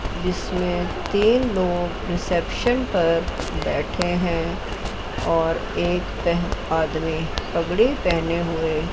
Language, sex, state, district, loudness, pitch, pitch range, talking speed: Hindi, female, Chandigarh, Chandigarh, -23 LUFS, 170 Hz, 160-180 Hz, 85 wpm